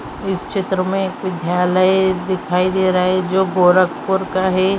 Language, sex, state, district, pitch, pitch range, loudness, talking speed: Bhojpuri, female, Uttar Pradesh, Gorakhpur, 185 Hz, 185-190 Hz, -17 LUFS, 165 wpm